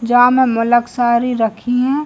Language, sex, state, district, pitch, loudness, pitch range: Bhojpuri, female, Bihar, East Champaran, 245 Hz, -14 LUFS, 235-250 Hz